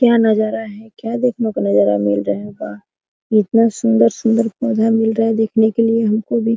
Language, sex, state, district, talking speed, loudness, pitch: Hindi, female, Jharkhand, Sahebganj, 210 wpm, -16 LUFS, 225 Hz